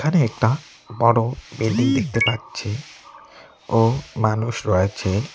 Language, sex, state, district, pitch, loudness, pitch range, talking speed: Bengali, male, West Bengal, Cooch Behar, 115 Hz, -21 LUFS, 110-125 Hz, 100 wpm